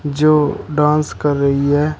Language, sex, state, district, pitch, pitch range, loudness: Hindi, male, Uttar Pradesh, Shamli, 150 Hz, 145-150 Hz, -16 LUFS